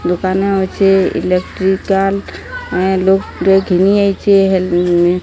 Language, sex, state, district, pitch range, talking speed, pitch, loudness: Odia, female, Odisha, Sambalpur, 185-195 Hz, 90 wpm, 190 Hz, -13 LUFS